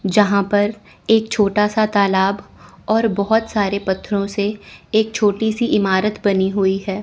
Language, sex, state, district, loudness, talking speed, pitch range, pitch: Hindi, female, Chandigarh, Chandigarh, -18 LUFS, 155 wpm, 200-215 Hz, 205 Hz